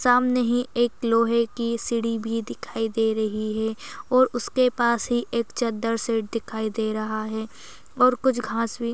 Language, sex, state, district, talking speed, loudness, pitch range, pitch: Hindi, female, Maharashtra, Solapur, 175 wpm, -24 LUFS, 220-245 Hz, 230 Hz